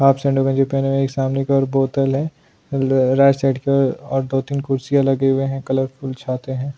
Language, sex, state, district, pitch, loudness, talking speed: Hindi, male, Goa, North and South Goa, 135 Hz, -19 LUFS, 205 wpm